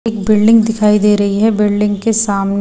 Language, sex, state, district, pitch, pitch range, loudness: Hindi, female, Himachal Pradesh, Shimla, 210 Hz, 205-220 Hz, -12 LUFS